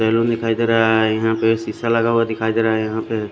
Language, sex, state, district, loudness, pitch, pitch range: Hindi, male, Odisha, Khordha, -18 LUFS, 115 Hz, 110-115 Hz